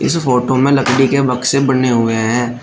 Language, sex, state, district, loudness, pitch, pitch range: Hindi, male, Uttar Pradesh, Shamli, -14 LUFS, 130 Hz, 120-135 Hz